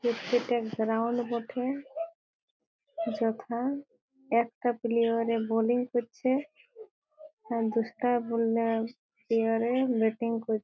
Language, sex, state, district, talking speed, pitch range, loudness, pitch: Bengali, female, West Bengal, Jhargram, 90 wpm, 230-255 Hz, -30 LUFS, 235 Hz